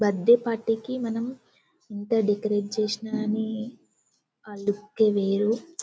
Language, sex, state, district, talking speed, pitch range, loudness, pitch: Telugu, male, Telangana, Karimnagar, 115 wpm, 210-230 Hz, -26 LUFS, 220 Hz